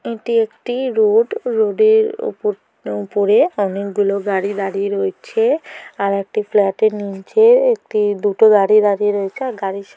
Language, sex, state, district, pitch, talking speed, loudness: Bengali, female, West Bengal, North 24 Parganas, 210 Hz, 145 wpm, -17 LUFS